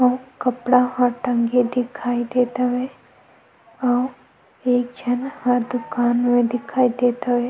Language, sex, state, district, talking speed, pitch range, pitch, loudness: Chhattisgarhi, female, Chhattisgarh, Sukma, 130 wpm, 245-250 Hz, 245 Hz, -21 LUFS